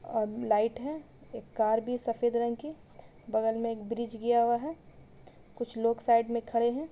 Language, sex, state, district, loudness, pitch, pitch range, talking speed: Hindi, female, Bihar, East Champaran, -30 LUFS, 235 Hz, 230-240 Hz, 180 wpm